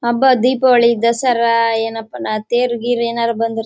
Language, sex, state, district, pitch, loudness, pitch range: Kannada, female, Karnataka, Bellary, 235 Hz, -15 LUFS, 230-245 Hz